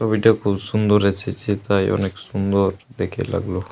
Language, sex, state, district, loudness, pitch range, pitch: Bengali, male, Jharkhand, Jamtara, -20 LUFS, 95-110 Hz, 100 Hz